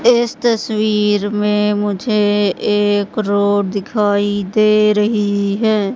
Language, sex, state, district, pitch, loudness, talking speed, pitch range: Hindi, female, Madhya Pradesh, Katni, 210 Hz, -15 LUFS, 100 wpm, 205-215 Hz